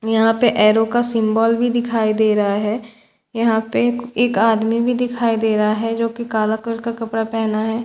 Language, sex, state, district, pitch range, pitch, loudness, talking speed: Hindi, female, Bihar, Katihar, 220-235 Hz, 225 Hz, -18 LUFS, 205 wpm